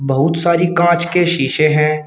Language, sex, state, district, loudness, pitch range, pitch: Hindi, male, Uttar Pradesh, Shamli, -14 LUFS, 150-175 Hz, 165 Hz